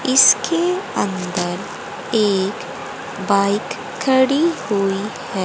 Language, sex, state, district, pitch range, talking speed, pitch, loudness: Hindi, female, Haryana, Jhajjar, 195-265 Hz, 75 wpm, 205 Hz, -19 LUFS